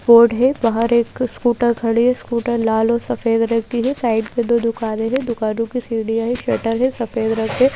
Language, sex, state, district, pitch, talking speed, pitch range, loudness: Hindi, female, Madhya Pradesh, Bhopal, 235 Hz, 225 wpm, 225-245 Hz, -18 LUFS